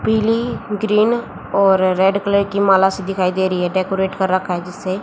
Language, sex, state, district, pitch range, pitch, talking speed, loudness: Hindi, female, Haryana, Jhajjar, 185-200 Hz, 195 Hz, 205 wpm, -17 LUFS